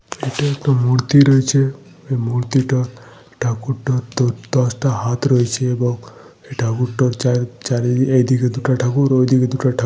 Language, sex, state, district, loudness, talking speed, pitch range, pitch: Bengali, male, West Bengal, Purulia, -17 LUFS, 145 wpm, 125-135 Hz, 125 Hz